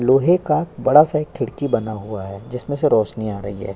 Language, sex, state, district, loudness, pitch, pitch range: Hindi, male, Uttar Pradesh, Jyotiba Phule Nagar, -19 LUFS, 125 Hz, 105-150 Hz